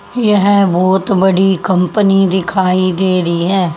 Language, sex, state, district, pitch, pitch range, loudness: Hindi, female, Haryana, Charkhi Dadri, 190 Hz, 180-195 Hz, -12 LUFS